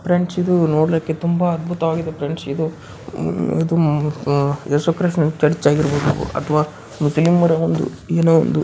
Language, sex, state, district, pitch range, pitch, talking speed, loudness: Kannada, male, Karnataka, Bijapur, 145-165 Hz, 160 Hz, 75 wpm, -18 LUFS